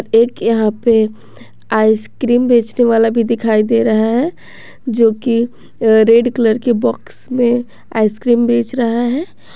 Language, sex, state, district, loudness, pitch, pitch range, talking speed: Hindi, female, Jharkhand, Garhwa, -14 LUFS, 230 Hz, 220-240 Hz, 150 wpm